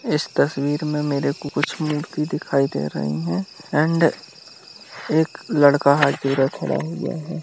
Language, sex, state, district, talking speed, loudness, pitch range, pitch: Hindi, male, Uttar Pradesh, Jalaun, 160 wpm, -21 LUFS, 140-160 Hz, 150 Hz